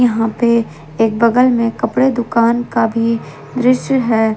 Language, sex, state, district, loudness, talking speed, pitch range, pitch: Hindi, female, Jharkhand, Ranchi, -15 LUFS, 165 wpm, 225-245 Hz, 230 Hz